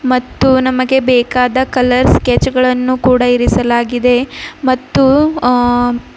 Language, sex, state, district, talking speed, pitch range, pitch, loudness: Kannada, female, Karnataka, Bidar, 105 wpm, 245-260 Hz, 250 Hz, -12 LUFS